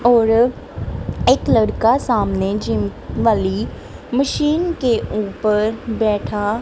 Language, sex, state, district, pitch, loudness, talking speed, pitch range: Hindi, female, Punjab, Kapurthala, 225 Hz, -18 LUFS, 100 wpm, 205-240 Hz